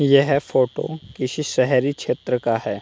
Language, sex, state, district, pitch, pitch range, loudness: Hindi, male, Uttar Pradesh, Hamirpur, 130 Hz, 125-140 Hz, -21 LUFS